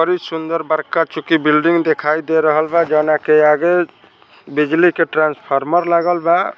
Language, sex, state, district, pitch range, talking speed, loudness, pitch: Bhojpuri, male, Bihar, Saran, 155-170 Hz, 135 wpm, -15 LUFS, 160 Hz